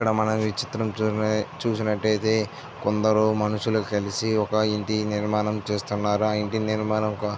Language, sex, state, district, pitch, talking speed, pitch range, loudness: Telugu, male, Andhra Pradesh, Visakhapatnam, 110 Hz, 145 wpm, 105-110 Hz, -24 LUFS